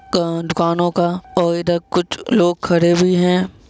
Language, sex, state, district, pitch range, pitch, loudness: Hindi, male, Bihar, Gopalganj, 170-180 Hz, 175 Hz, -17 LUFS